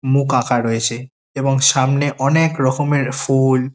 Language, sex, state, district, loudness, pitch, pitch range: Bengali, male, West Bengal, Kolkata, -16 LUFS, 135 Hz, 130-140 Hz